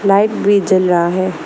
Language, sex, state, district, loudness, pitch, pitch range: Hindi, female, Arunachal Pradesh, Lower Dibang Valley, -13 LUFS, 190 Hz, 180-200 Hz